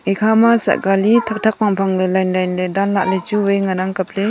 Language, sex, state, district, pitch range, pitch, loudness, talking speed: Wancho, female, Arunachal Pradesh, Longding, 190-210 Hz, 195 Hz, -16 LUFS, 210 wpm